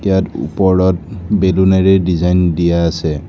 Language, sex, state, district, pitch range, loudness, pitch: Assamese, male, Assam, Kamrup Metropolitan, 85-95 Hz, -14 LUFS, 95 Hz